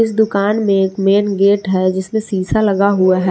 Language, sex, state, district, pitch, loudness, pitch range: Hindi, female, Jharkhand, Palamu, 200 Hz, -15 LUFS, 190-210 Hz